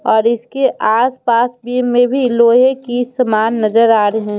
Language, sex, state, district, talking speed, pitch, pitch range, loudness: Hindi, female, Bihar, Muzaffarpur, 175 wpm, 240 Hz, 220-250 Hz, -13 LUFS